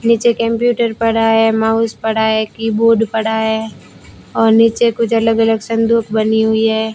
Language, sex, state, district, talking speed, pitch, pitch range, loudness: Hindi, female, Rajasthan, Bikaner, 165 wpm, 225 Hz, 220-230 Hz, -14 LUFS